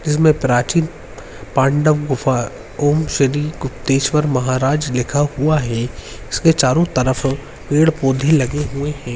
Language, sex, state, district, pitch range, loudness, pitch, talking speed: Hindi, male, Uttarakhand, Uttarkashi, 130-150 Hz, -17 LUFS, 140 Hz, 120 wpm